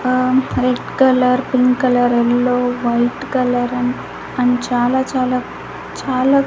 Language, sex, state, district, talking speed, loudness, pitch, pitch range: Telugu, female, Andhra Pradesh, Annamaya, 110 wpm, -16 LUFS, 250 Hz, 245-255 Hz